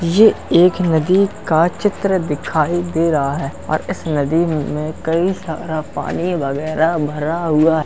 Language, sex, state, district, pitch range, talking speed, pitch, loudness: Hindi, male, Uttar Pradesh, Jalaun, 155-175 Hz, 155 wpm, 165 Hz, -17 LUFS